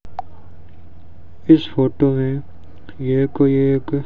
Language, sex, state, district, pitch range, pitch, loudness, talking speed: Hindi, male, Rajasthan, Bikaner, 85-135 Hz, 130 Hz, -17 LUFS, 90 wpm